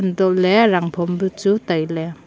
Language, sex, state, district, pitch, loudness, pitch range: Wancho, female, Arunachal Pradesh, Longding, 185 Hz, -18 LUFS, 170-195 Hz